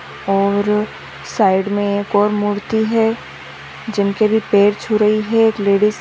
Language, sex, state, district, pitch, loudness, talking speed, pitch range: Hindi, female, Chhattisgarh, Raigarh, 210 Hz, -16 LUFS, 160 wpm, 200-220 Hz